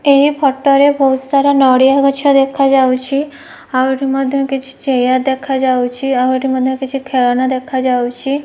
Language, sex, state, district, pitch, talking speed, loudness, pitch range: Odia, female, Odisha, Malkangiri, 270 Hz, 140 wpm, -13 LUFS, 260-275 Hz